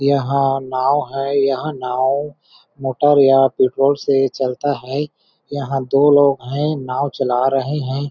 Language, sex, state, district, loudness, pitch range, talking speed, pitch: Hindi, male, Chhattisgarh, Balrampur, -17 LUFS, 135-145 Hz, 140 wpm, 135 Hz